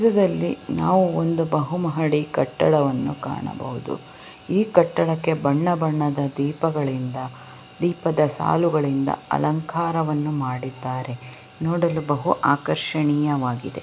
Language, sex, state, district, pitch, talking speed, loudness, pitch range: Kannada, female, Karnataka, Belgaum, 150 Hz, 80 wpm, -22 LUFS, 140-165 Hz